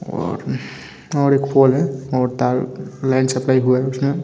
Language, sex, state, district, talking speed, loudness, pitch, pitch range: Hindi, male, Bihar, Vaishali, 185 wpm, -18 LUFS, 130 Hz, 130-140 Hz